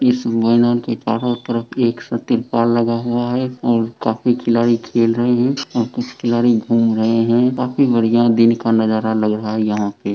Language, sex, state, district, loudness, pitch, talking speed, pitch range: Hindi, male, Bihar, Sitamarhi, -17 LUFS, 115 Hz, 195 wpm, 115-120 Hz